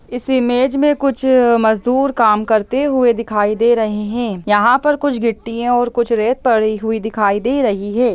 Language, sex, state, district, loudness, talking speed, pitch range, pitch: Hindi, female, Bihar, Lakhisarai, -15 LUFS, 185 wpm, 220-255 Hz, 235 Hz